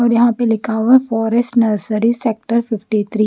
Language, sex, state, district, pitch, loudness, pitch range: Hindi, female, Chandigarh, Chandigarh, 230 Hz, -16 LUFS, 220-235 Hz